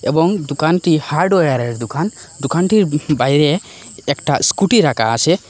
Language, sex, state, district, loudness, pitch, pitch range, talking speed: Bengali, male, Assam, Hailakandi, -16 LUFS, 155 Hz, 140-180 Hz, 120 wpm